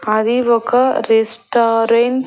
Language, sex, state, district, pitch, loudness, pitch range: Telugu, female, Andhra Pradesh, Annamaya, 235 Hz, -14 LUFS, 225-245 Hz